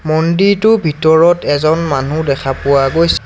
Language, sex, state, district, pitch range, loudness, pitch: Assamese, male, Assam, Sonitpur, 145-170 Hz, -12 LUFS, 155 Hz